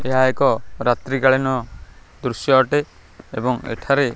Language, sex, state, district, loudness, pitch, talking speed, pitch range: Odia, male, Odisha, Khordha, -19 LUFS, 130 Hz, 115 wpm, 120-135 Hz